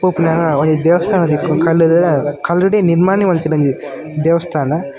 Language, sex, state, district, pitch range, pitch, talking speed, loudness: Tulu, male, Karnataka, Dakshina Kannada, 155-175 Hz, 165 Hz, 120 wpm, -14 LUFS